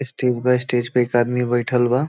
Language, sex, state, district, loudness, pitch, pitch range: Bhojpuri, male, Bihar, Saran, -19 LUFS, 125 Hz, 120-125 Hz